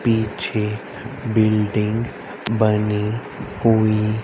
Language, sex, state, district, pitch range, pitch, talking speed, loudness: Hindi, male, Haryana, Rohtak, 105-115 Hz, 110 Hz, 55 wpm, -20 LUFS